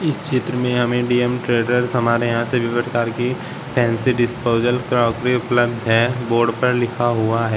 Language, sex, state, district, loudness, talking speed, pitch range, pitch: Hindi, male, Uttar Pradesh, Shamli, -19 LUFS, 165 wpm, 115-125 Hz, 120 Hz